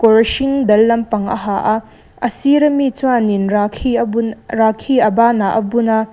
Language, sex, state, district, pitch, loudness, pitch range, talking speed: Mizo, female, Mizoram, Aizawl, 225 Hz, -15 LUFS, 215-245 Hz, 195 wpm